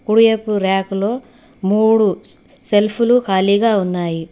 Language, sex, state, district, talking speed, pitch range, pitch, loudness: Telugu, female, Telangana, Hyderabad, 85 wpm, 195-230 Hz, 210 Hz, -16 LUFS